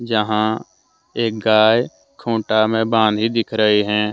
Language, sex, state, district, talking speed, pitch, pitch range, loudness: Hindi, male, Jharkhand, Deoghar, 130 wpm, 110 Hz, 110-115 Hz, -17 LUFS